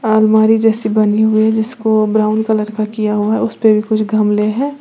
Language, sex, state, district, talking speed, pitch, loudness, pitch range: Hindi, female, Uttar Pradesh, Lalitpur, 210 wpm, 215 Hz, -13 LUFS, 215-220 Hz